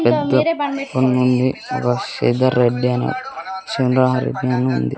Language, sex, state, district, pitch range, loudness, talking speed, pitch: Telugu, male, Andhra Pradesh, Sri Satya Sai, 125-175 Hz, -18 LUFS, 120 wpm, 130 Hz